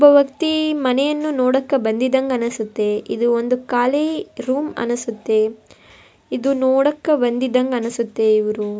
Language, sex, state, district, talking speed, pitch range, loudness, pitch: Kannada, female, Karnataka, Bellary, 100 wpm, 230-275 Hz, -19 LUFS, 255 Hz